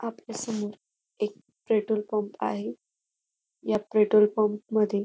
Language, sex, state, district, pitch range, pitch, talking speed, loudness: Marathi, female, Maharashtra, Dhule, 210-220 Hz, 215 Hz, 120 wpm, -27 LUFS